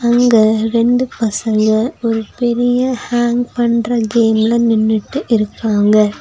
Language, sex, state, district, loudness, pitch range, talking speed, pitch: Tamil, female, Tamil Nadu, Nilgiris, -14 LUFS, 220-240 Hz, 95 wpm, 230 Hz